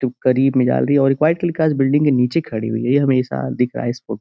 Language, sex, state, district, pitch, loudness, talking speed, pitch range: Hindi, male, Uttar Pradesh, Gorakhpur, 135 Hz, -17 LUFS, 330 wpm, 125-145 Hz